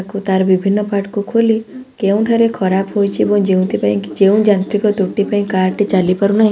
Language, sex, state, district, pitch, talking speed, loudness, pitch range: Odia, female, Odisha, Khordha, 200 Hz, 195 wpm, -15 LUFS, 190-210 Hz